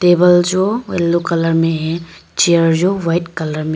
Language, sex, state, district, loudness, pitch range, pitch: Hindi, female, Arunachal Pradesh, Papum Pare, -15 LUFS, 165-180 Hz, 170 Hz